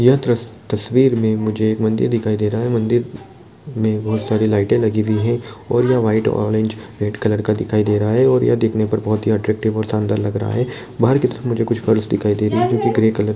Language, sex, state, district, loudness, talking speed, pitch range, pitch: Hindi, male, Bihar, Jamui, -18 LUFS, 250 wpm, 105-120 Hz, 110 Hz